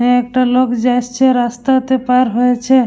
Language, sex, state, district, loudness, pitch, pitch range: Bengali, female, West Bengal, Dakshin Dinajpur, -14 LUFS, 250 Hz, 245-255 Hz